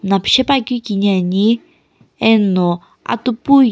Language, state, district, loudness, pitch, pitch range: Sumi, Nagaland, Kohima, -15 LUFS, 220 Hz, 195-250 Hz